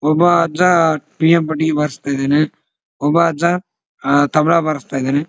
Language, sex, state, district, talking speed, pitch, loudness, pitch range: Kannada, male, Karnataka, Dharwad, 100 wpm, 155 Hz, -15 LUFS, 145-170 Hz